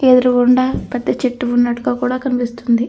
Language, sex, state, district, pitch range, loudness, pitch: Telugu, female, Andhra Pradesh, Krishna, 245-255 Hz, -16 LUFS, 245 Hz